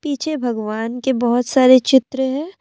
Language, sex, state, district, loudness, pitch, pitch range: Hindi, female, Assam, Kamrup Metropolitan, -17 LUFS, 260 Hz, 240-280 Hz